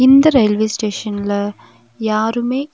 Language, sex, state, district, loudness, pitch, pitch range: Tamil, female, Tamil Nadu, Nilgiris, -16 LUFS, 215 Hz, 205-245 Hz